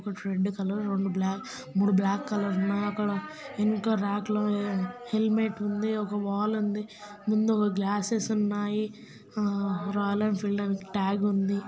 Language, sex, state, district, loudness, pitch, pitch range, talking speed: Telugu, female, Telangana, Nalgonda, -29 LUFS, 205 Hz, 200-215 Hz, 140 wpm